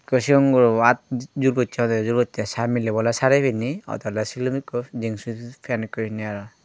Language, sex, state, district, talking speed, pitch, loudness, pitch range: Chakma, male, Tripura, Unakoti, 205 wpm, 120 Hz, -22 LUFS, 110-130 Hz